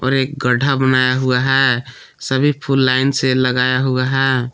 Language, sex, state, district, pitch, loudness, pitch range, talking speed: Hindi, male, Jharkhand, Palamu, 130 Hz, -16 LUFS, 130-135 Hz, 170 wpm